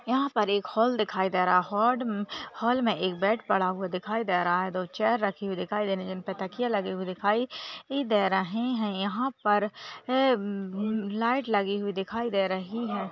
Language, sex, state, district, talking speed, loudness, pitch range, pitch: Hindi, female, Maharashtra, Nagpur, 200 wpm, -28 LUFS, 190-230 Hz, 205 Hz